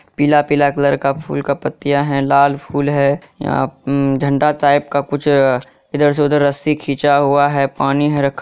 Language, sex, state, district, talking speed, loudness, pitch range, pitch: Hindi, male, Bihar, Kishanganj, 190 wpm, -15 LUFS, 140-145 Hz, 140 Hz